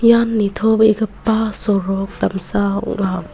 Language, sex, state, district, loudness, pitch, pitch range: Garo, female, Meghalaya, West Garo Hills, -17 LUFS, 210 Hz, 195-220 Hz